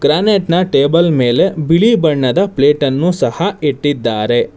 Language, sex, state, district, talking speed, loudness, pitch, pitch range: Kannada, male, Karnataka, Bangalore, 130 wpm, -13 LUFS, 155 Hz, 140-180 Hz